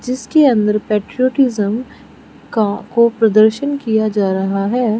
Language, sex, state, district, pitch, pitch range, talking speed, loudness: Hindi, female, Arunachal Pradesh, Lower Dibang Valley, 220 Hz, 210-250 Hz, 110 wpm, -15 LUFS